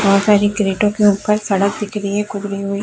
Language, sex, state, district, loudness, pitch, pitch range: Hindi, female, Chhattisgarh, Bilaspur, -16 LUFS, 205 Hz, 200-210 Hz